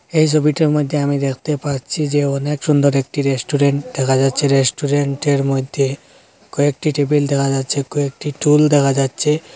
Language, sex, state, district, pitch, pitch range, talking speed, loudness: Bengali, male, Assam, Hailakandi, 145 Hz, 135-150 Hz, 145 wpm, -17 LUFS